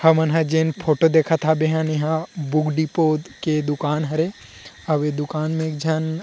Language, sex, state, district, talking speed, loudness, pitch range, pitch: Chhattisgarhi, male, Chhattisgarh, Rajnandgaon, 185 wpm, -21 LUFS, 150-160 Hz, 155 Hz